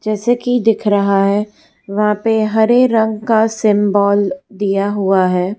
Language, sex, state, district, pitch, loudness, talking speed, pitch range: Hindi, female, Gujarat, Valsad, 210 Hz, -14 LUFS, 140 wpm, 200-220 Hz